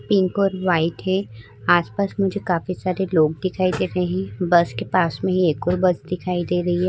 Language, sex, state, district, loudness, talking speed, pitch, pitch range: Hindi, female, Uttar Pradesh, Muzaffarnagar, -21 LUFS, 215 wpm, 180 Hz, 175-185 Hz